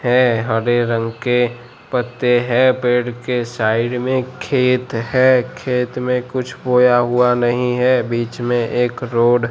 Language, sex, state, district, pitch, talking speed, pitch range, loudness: Hindi, male, Gujarat, Gandhinagar, 125 Hz, 150 wpm, 120-125 Hz, -17 LUFS